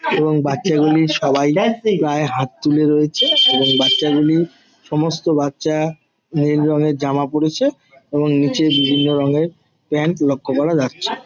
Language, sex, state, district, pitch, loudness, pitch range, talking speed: Bengali, male, West Bengal, Jalpaiguri, 150 Hz, -16 LUFS, 145-155 Hz, 145 wpm